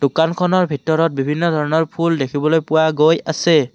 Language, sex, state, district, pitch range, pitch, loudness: Assamese, male, Assam, Kamrup Metropolitan, 150-165 Hz, 160 Hz, -17 LUFS